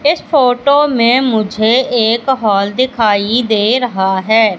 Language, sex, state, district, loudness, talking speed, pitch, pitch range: Hindi, female, Madhya Pradesh, Katni, -12 LUFS, 130 wpm, 235 Hz, 215-255 Hz